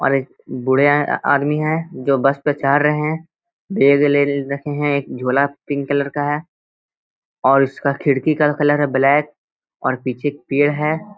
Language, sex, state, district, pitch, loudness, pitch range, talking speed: Hindi, male, Bihar, Gaya, 145 Hz, -18 LUFS, 140-150 Hz, 165 wpm